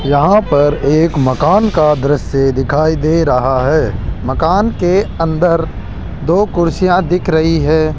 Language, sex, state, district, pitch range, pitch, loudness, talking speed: Hindi, male, Rajasthan, Jaipur, 145-170 Hz, 155 Hz, -13 LUFS, 135 wpm